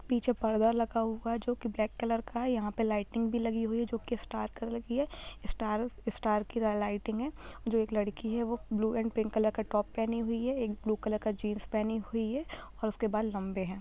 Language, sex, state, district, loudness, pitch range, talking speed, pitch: Hindi, female, Bihar, Muzaffarpur, -33 LUFS, 215-235 Hz, 250 wpm, 225 Hz